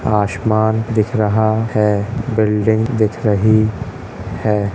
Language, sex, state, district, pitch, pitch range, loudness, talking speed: Hindi, male, Uttar Pradesh, Jalaun, 110 Hz, 105-110 Hz, -16 LUFS, 100 wpm